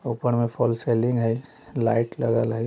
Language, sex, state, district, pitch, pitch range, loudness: Bajjika, male, Bihar, Vaishali, 115 Hz, 115-120 Hz, -24 LUFS